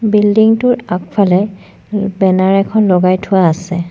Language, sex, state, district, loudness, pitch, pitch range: Assamese, female, Assam, Sonitpur, -12 LUFS, 195 Hz, 185-210 Hz